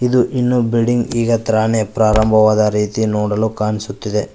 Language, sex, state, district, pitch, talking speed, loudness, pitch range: Kannada, male, Karnataka, Koppal, 110 Hz, 110 wpm, -16 LUFS, 105-115 Hz